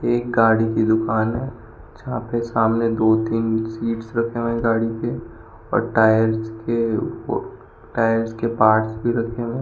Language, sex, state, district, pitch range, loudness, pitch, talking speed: Hindi, male, Rajasthan, Bikaner, 110-115 Hz, -20 LUFS, 115 Hz, 170 wpm